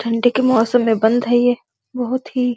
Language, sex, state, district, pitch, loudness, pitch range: Hindi, female, Uttar Pradesh, Deoria, 245 Hz, -17 LUFS, 230-250 Hz